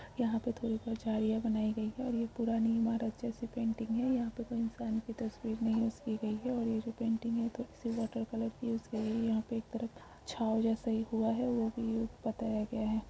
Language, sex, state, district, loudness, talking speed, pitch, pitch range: Hindi, female, Chhattisgarh, Kabirdham, -35 LUFS, 245 wpm, 225 Hz, 225-235 Hz